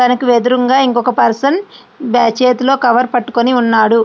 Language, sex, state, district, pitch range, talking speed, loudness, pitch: Telugu, female, Andhra Pradesh, Srikakulam, 240-255 Hz, 135 wpm, -12 LUFS, 245 Hz